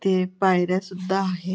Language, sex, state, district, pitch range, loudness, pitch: Marathi, female, Maharashtra, Pune, 185-190 Hz, -23 LUFS, 185 Hz